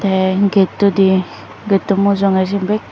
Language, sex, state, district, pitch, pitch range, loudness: Chakma, female, Tripura, Dhalai, 195 Hz, 190-200 Hz, -15 LUFS